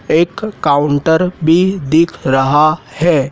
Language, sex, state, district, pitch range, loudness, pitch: Hindi, male, Madhya Pradesh, Dhar, 145-170 Hz, -13 LUFS, 160 Hz